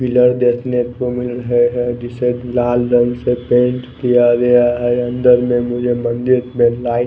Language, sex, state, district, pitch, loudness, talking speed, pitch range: Hindi, male, Bihar, West Champaran, 120 Hz, -15 LUFS, 160 wpm, 120-125 Hz